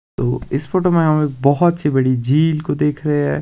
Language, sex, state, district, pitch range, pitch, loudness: Hindi, male, Himachal Pradesh, Shimla, 130-155 Hz, 145 Hz, -17 LUFS